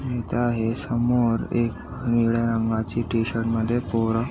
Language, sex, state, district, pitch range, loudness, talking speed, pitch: Marathi, male, Maharashtra, Aurangabad, 115-120 Hz, -24 LUFS, 110 wpm, 115 Hz